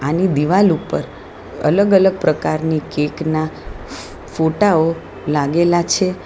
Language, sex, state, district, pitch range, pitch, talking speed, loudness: Gujarati, female, Gujarat, Valsad, 155-185 Hz, 160 Hz, 115 wpm, -17 LUFS